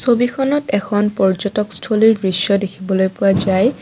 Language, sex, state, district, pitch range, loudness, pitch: Assamese, female, Assam, Kamrup Metropolitan, 190-235 Hz, -16 LUFS, 205 Hz